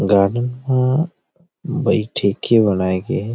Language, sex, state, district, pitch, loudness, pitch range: Chhattisgarhi, male, Chhattisgarh, Rajnandgaon, 120 Hz, -18 LUFS, 100-155 Hz